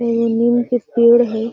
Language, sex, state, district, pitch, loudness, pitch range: Magahi, female, Bihar, Gaya, 235 Hz, -15 LUFS, 230-240 Hz